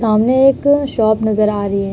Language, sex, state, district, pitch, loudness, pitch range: Hindi, female, Uttar Pradesh, Budaun, 220 Hz, -14 LUFS, 210-270 Hz